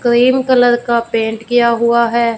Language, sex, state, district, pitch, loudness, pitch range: Hindi, female, Punjab, Fazilka, 235 Hz, -13 LUFS, 235-240 Hz